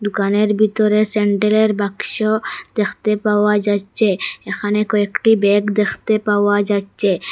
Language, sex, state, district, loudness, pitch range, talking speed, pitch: Bengali, female, Assam, Hailakandi, -17 LUFS, 205-215 Hz, 105 wpm, 210 Hz